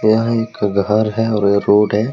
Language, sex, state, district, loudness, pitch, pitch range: Hindi, male, Jharkhand, Deoghar, -15 LUFS, 105 Hz, 105-110 Hz